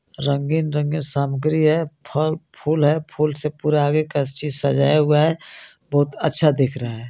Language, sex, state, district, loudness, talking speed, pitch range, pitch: Hindi, male, Jharkhand, Garhwa, -19 LUFS, 175 wpm, 140-155 Hz, 150 Hz